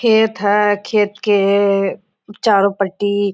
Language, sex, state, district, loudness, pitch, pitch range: Hindi, female, Jharkhand, Sahebganj, -16 LUFS, 205 Hz, 200-210 Hz